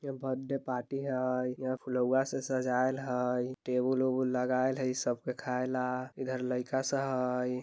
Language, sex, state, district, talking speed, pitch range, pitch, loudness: Bajjika, male, Bihar, Vaishali, 165 wpm, 125-130 Hz, 130 Hz, -33 LUFS